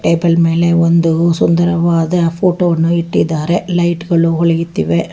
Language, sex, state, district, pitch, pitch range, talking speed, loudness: Kannada, female, Karnataka, Bangalore, 170 Hz, 165-170 Hz, 115 wpm, -13 LUFS